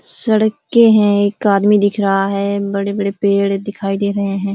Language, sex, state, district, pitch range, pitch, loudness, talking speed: Hindi, female, Uttar Pradesh, Ghazipur, 200-205 Hz, 200 Hz, -15 LUFS, 185 wpm